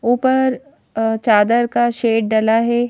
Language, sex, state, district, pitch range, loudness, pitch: Hindi, female, Madhya Pradesh, Bhopal, 225-240 Hz, -16 LUFS, 235 Hz